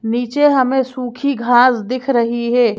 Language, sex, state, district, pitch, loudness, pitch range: Hindi, female, Madhya Pradesh, Bhopal, 250 Hz, -15 LUFS, 235-260 Hz